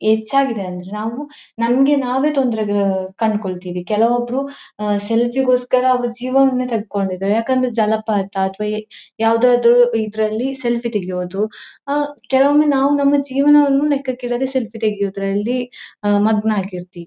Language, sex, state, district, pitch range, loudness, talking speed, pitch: Kannada, female, Karnataka, Dakshina Kannada, 210-265 Hz, -18 LUFS, 110 wpm, 230 Hz